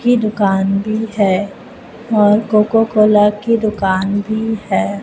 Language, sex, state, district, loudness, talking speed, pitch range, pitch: Hindi, female, Madhya Pradesh, Dhar, -15 LUFS, 120 wpm, 200-225 Hz, 210 Hz